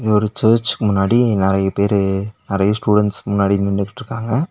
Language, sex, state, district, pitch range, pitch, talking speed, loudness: Tamil, male, Tamil Nadu, Nilgiris, 100-110 Hz, 105 Hz, 120 wpm, -17 LUFS